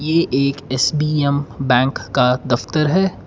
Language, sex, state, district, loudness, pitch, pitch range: Hindi, male, Karnataka, Bangalore, -18 LUFS, 140 Hz, 130-150 Hz